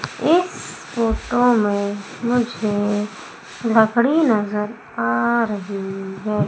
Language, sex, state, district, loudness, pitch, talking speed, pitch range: Hindi, female, Madhya Pradesh, Umaria, -20 LUFS, 215 Hz, 85 wpm, 205-235 Hz